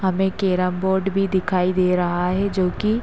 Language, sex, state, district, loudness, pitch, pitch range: Hindi, female, Uttar Pradesh, Hamirpur, -21 LUFS, 190 Hz, 180-195 Hz